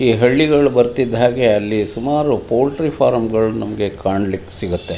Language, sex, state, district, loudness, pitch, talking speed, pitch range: Kannada, male, Karnataka, Mysore, -16 LUFS, 120 Hz, 130 wpm, 105-135 Hz